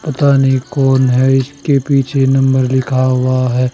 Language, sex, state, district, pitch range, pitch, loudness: Hindi, male, Haryana, Charkhi Dadri, 130-135 Hz, 130 Hz, -13 LUFS